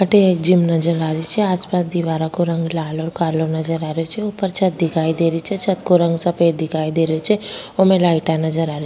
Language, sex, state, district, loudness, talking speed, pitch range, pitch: Rajasthani, female, Rajasthan, Nagaur, -18 LUFS, 265 wpm, 160-185 Hz, 165 Hz